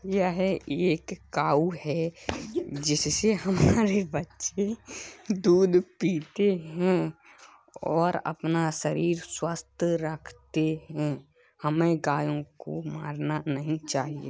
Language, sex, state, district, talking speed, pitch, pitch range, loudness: Hindi, male, Uttar Pradesh, Hamirpur, 90 wpm, 165 Hz, 150-185 Hz, -28 LUFS